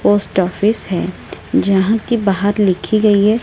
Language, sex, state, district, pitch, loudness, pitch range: Hindi, female, Odisha, Malkangiri, 205 Hz, -15 LUFS, 195-215 Hz